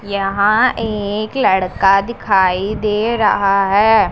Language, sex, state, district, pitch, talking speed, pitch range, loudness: Hindi, female, Punjab, Pathankot, 205 Hz, 100 wpm, 195-215 Hz, -15 LUFS